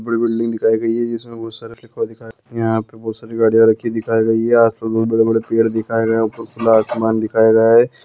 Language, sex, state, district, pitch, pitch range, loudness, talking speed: Hindi, male, Bihar, Begusarai, 115 Hz, 110-115 Hz, -16 LUFS, 200 wpm